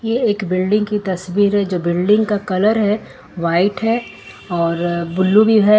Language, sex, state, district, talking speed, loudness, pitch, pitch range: Hindi, female, Jharkhand, Ranchi, 165 wpm, -17 LUFS, 200 Hz, 180-210 Hz